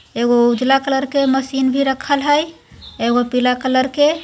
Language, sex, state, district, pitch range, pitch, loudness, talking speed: Hindi, female, Bihar, Jahanabad, 250-280 Hz, 270 Hz, -16 LUFS, 170 wpm